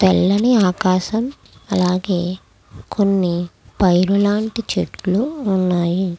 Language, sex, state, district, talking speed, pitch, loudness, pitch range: Telugu, female, Andhra Pradesh, Krishna, 70 wpm, 190 Hz, -18 LUFS, 180-210 Hz